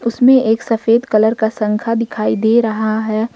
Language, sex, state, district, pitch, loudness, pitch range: Hindi, female, Jharkhand, Ranchi, 225 Hz, -15 LUFS, 220-230 Hz